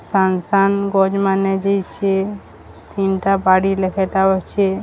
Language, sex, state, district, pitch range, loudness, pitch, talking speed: Odia, female, Odisha, Sambalpur, 190-195 Hz, -17 LUFS, 195 Hz, 135 wpm